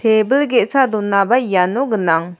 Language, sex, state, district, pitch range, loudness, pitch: Garo, female, Meghalaya, South Garo Hills, 195-255 Hz, -15 LUFS, 215 Hz